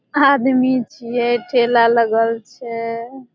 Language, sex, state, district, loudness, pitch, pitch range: Maithili, female, Bihar, Supaul, -17 LUFS, 240 Hz, 230-255 Hz